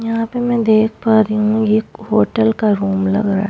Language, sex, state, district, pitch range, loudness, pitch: Hindi, female, Bihar, Vaishali, 210-225 Hz, -15 LUFS, 220 Hz